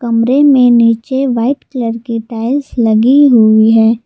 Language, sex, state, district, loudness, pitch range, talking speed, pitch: Hindi, female, Jharkhand, Garhwa, -10 LUFS, 225-265 Hz, 150 wpm, 235 Hz